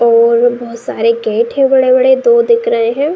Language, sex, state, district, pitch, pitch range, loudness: Hindi, female, Uttar Pradesh, Jalaun, 245 Hz, 230-275 Hz, -11 LUFS